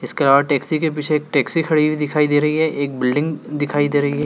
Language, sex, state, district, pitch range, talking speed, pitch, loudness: Hindi, male, Madhya Pradesh, Dhar, 145-155 Hz, 270 wpm, 150 Hz, -18 LUFS